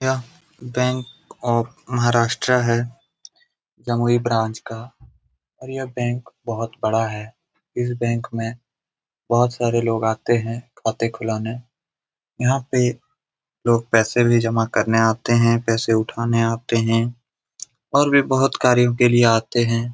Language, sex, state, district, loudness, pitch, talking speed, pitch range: Hindi, male, Bihar, Jamui, -20 LUFS, 120 Hz, 135 wpm, 115-125 Hz